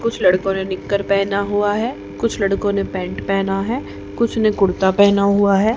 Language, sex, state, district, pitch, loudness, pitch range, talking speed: Hindi, female, Haryana, Charkhi Dadri, 200 Hz, -18 LUFS, 195-205 Hz, 195 wpm